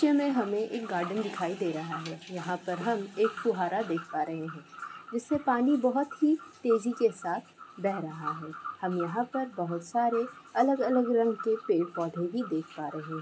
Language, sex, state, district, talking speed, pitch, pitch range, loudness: Hindi, female, Bihar, Darbhanga, 185 wpm, 205 Hz, 170-240 Hz, -30 LUFS